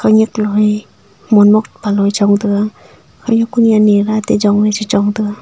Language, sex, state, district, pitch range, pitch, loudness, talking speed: Wancho, female, Arunachal Pradesh, Longding, 205-215 Hz, 210 Hz, -13 LUFS, 200 wpm